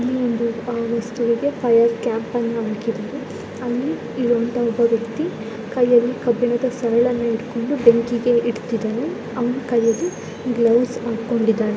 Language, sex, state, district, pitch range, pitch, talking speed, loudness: Kannada, female, Karnataka, Belgaum, 230-245 Hz, 235 Hz, 90 wpm, -20 LUFS